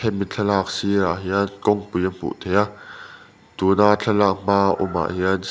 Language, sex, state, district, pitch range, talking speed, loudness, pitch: Mizo, male, Mizoram, Aizawl, 95-105 Hz, 175 wpm, -21 LUFS, 100 Hz